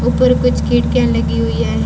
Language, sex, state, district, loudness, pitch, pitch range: Hindi, female, Rajasthan, Bikaner, -14 LUFS, 80 Hz, 75-80 Hz